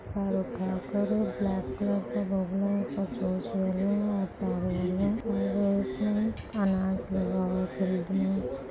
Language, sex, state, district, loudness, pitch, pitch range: Hindi, female, Bihar, Kishanganj, -30 LUFS, 195 Hz, 185-205 Hz